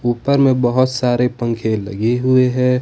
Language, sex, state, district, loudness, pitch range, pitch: Hindi, male, Jharkhand, Ranchi, -16 LUFS, 120-130 Hz, 125 Hz